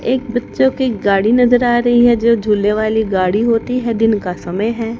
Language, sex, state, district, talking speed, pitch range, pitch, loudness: Hindi, female, Haryana, Jhajjar, 215 wpm, 210-240 Hz, 230 Hz, -15 LUFS